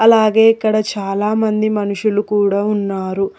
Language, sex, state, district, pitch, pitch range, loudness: Telugu, female, Telangana, Hyderabad, 210 Hz, 200-215 Hz, -16 LUFS